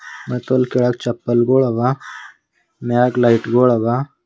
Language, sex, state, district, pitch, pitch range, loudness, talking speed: Kannada, male, Karnataka, Bidar, 125 Hz, 120-125 Hz, -17 LUFS, 125 wpm